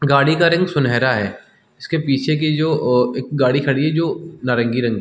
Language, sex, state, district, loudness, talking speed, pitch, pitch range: Hindi, male, Chhattisgarh, Balrampur, -18 LUFS, 215 wpm, 140 Hz, 125-155 Hz